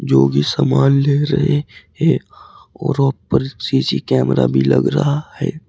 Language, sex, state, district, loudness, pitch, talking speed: Hindi, male, Uttar Pradesh, Saharanpur, -16 LUFS, 135 Hz, 145 wpm